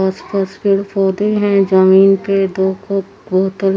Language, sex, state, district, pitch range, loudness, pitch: Hindi, female, Haryana, Charkhi Dadri, 190-200 Hz, -14 LUFS, 195 Hz